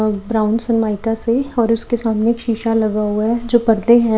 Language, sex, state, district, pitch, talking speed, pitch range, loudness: Hindi, female, Maharashtra, Gondia, 225 Hz, 215 wpm, 220-235 Hz, -17 LUFS